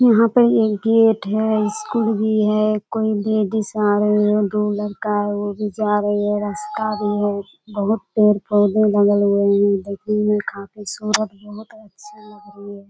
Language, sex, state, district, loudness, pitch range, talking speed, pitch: Hindi, female, Bihar, Kishanganj, -18 LUFS, 205-215 Hz, 180 wpm, 210 Hz